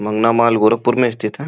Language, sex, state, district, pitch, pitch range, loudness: Hindi, male, Uttar Pradesh, Gorakhpur, 115 Hz, 110-120 Hz, -15 LUFS